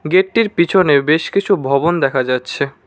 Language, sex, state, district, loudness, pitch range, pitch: Bengali, male, West Bengal, Cooch Behar, -15 LUFS, 140-190 Hz, 165 Hz